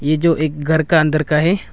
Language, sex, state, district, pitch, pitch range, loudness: Hindi, male, Arunachal Pradesh, Longding, 155 Hz, 155-165 Hz, -16 LUFS